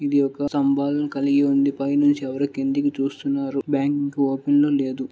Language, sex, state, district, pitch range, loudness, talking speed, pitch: Telugu, male, Andhra Pradesh, Srikakulam, 140-145 Hz, -22 LUFS, 165 wpm, 140 Hz